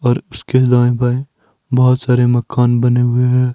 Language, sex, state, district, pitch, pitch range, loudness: Hindi, male, Himachal Pradesh, Shimla, 125 Hz, 120-125 Hz, -14 LUFS